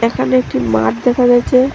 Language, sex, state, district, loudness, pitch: Bengali, female, Tripura, Dhalai, -13 LUFS, 230 Hz